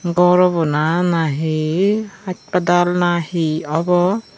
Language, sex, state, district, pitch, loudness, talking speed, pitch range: Chakma, female, Tripura, Unakoti, 175 Hz, -17 LUFS, 110 wpm, 160-180 Hz